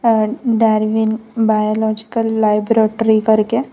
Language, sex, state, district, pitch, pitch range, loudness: Hindi, female, Gujarat, Valsad, 220 Hz, 215-225 Hz, -15 LUFS